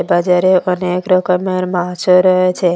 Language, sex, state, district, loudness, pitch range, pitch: Bengali, female, Assam, Hailakandi, -13 LUFS, 180-185 Hz, 180 Hz